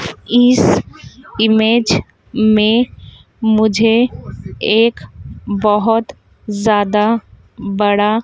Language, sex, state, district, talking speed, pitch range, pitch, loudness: Hindi, female, Madhya Pradesh, Dhar, 60 wpm, 210-230 Hz, 220 Hz, -14 LUFS